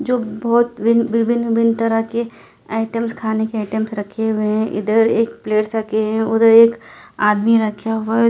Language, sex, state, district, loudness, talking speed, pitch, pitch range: Hindi, female, Delhi, New Delhi, -17 LUFS, 165 wpm, 225 Hz, 220-230 Hz